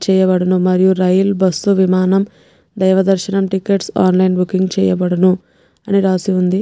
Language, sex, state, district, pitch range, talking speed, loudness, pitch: Telugu, female, Telangana, Nalgonda, 185-195 Hz, 120 wpm, -14 LUFS, 190 Hz